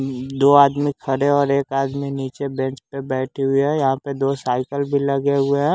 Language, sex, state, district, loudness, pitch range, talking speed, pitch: Hindi, male, Bihar, West Champaran, -19 LUFS, 135-140 Hz, 220 wpm, 140 Hz